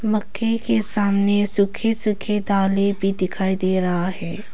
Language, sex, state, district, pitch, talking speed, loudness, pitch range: Hindi, female, Arunachal Pradesh, Papum Pare, 200 Hz, 145 wpm, -17 LUFS, 190-210 Hz